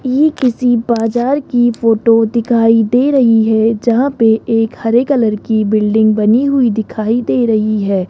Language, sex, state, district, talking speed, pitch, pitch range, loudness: Hindi, female, Rajasthan, Jaipur, 165 wpm, 230 Hz, 220-245 Hz, -12 LUFS